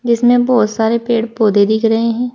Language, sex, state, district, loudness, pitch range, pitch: Hindi, female, Uttar Pradesh, Saharanpur, -13 LUFS, 220-240 Hz, 230 Hz